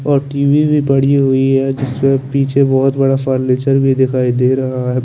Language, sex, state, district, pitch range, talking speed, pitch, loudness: Hindi, male, Chandigarh, Chandigarh, 130-140 Hz, 180 wpm, 135 Hz, -13 LUFS